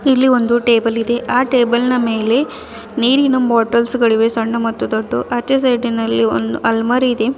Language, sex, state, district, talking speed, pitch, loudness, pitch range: Kannada, female, Karnataka, Bidar, 155 wpm, 235 Hz, -15 LUFS, 225-250 Hz